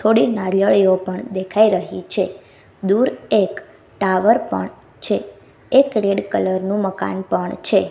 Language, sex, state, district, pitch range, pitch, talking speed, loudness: Gujarati, female, Gujarat, Gandhinagar, 190-220 Hz, 200 Hz, 135 wpm, -18 LUFS